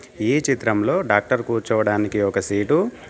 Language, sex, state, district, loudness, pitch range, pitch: Telugu, male, Telangana, Komaram Bheem, -20 LUFS, 105-115 Hz, 105 Hz